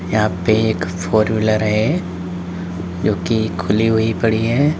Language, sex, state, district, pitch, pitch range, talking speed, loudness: Hindi, male, Uttar Pradesh, Lalitpur, 110 Hz, 90-110 Hz, 150 wpm, -18 LUFS